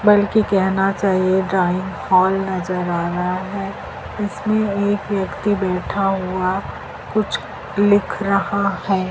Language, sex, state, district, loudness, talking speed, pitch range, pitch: Hindi, male, Madhya Pradesh, Dhar, -19 LUFS, 120 wpm, 185-205 Hz, 195 Hz